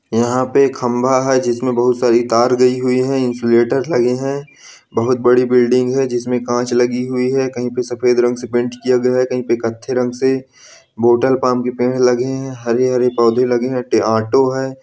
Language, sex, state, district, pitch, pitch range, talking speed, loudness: Hindi, male, Bihar, Muzaffarpur, 125 Hz, 120-130 Hz, 205 wpm, -16 LUFS